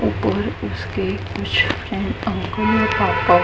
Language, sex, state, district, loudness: Hindi, female, Haryana, Jhajjar, -20 LUFS